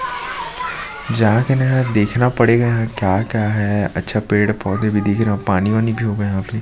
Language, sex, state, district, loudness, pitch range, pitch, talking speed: Hindi, male, Chhattisgarh, Sukma, -18 LUFS, 105-120 Hz, 110 Hz, 190 wpm